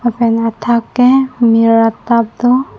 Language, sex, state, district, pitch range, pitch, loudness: Karbi, female, Assam, Karbi Anglong, 230-245 Hz, 235 Hz, -12 LUFS